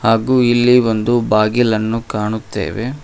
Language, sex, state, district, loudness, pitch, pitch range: Kannada, male, Karnataka, Koppal, -15 LUFS, 115 Hz, 110-120 Hz